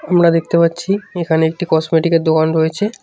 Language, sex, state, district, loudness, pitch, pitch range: Bengali, male, West Bengal, Cooch Behar, -15 LUFS, 165 Hz, 160-180 Hz